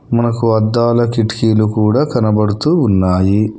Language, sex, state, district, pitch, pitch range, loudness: Telugu, male, Telangana, Hyderabad, 110 Hz, 105-120 Hz, -14 LUFS